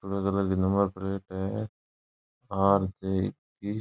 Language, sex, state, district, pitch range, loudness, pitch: Marwari, male, Rajasthan, Nagaur, 95-100 Hz, -29 LUFS, 95 Hz